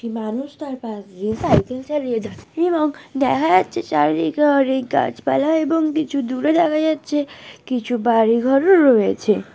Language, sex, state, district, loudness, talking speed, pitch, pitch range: Bengali, female, West Bengal, Jhargram, -18 LUFS, 130 wpm, 265 Hz, 230-300 Hz